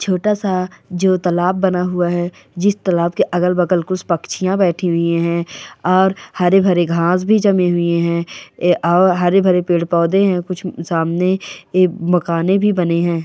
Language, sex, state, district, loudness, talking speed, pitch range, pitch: Angika, female, Bihar, Madhepura, -16 LUFS, 155 wpm, 170-185 Hz, 180 Hz